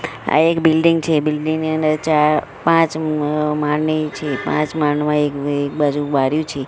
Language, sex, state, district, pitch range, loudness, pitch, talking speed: Gujarati, female, Gujarat, Gandhinagar, 150-155 Hz, -18 LUFS, 150 Hz, 160 wpm